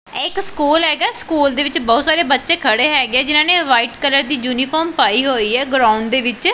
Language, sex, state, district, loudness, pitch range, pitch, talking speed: Punjabi, female, Punjab, Pathankot, -14 LUFS, 255-330 Hz, 290 Hz, 220 wpm